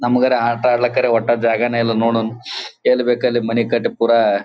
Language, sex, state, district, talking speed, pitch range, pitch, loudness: Kannada, male, Karnataka, Gulbarga, 160 wpm, 115-120 Hz, 120 Hz, -17 LUFS